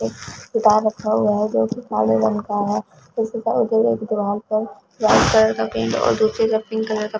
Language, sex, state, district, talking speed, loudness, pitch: Hindi, female, Punjab, Fazilka, 175 wpm, -19 LUFS, 210 Hz